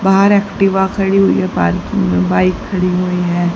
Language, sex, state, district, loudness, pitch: Hindi, female, Haryana, Rohtak, -14 LUFS, 180 Hz